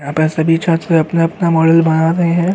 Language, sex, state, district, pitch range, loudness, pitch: Hindi, male, Uttar Pradesh, Hamirpur, 160-170 Hz, -13 LUFS, 165 Hz